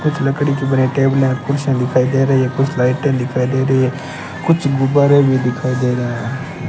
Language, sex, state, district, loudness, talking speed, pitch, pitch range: Hindi, male, Rajasthan, Bikaner, -16 LUFS, 205 wpm, 135 Hz, 125-140 Hz